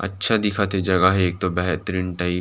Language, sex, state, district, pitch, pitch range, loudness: Chhattisgarhi, male, Chhattisgarh, Rajnandgaon, 95 Hz, 90-100 Hz, -21 LUFS